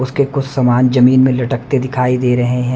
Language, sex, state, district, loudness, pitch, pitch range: Hindi, male, Haryana, Rohtak, -14 LUFS, 125 Hz, 125-135 Hz